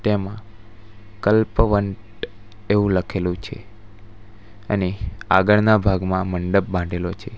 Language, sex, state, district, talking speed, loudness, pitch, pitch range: Gujarati, male, Gujarat, Valsad, 90 wpm, -20 LUFS, 105 Hz, 95-105 Hz